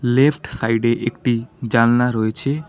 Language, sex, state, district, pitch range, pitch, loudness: Bengali, male, West Bengal, Alipurduar, 115-135 Hz, 120 Hz, -18 LUFS